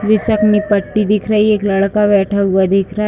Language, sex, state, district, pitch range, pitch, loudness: Hindi, female, Uttar Pradesh, Deoria, 200-210 Hz, 205 Hz, -13 LUFS